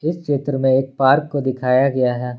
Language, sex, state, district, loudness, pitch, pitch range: Hindi, male, Jharkhand, Ranchi, -18 LUFS, 135 Hz, 130-140 Hz